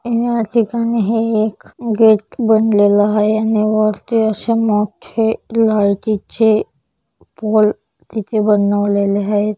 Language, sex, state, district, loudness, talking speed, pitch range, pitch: Marathi, female, Maharashtra, Chandrapur, -15 LUFS, 105 wpm, 210-225 Hz, 215 Hz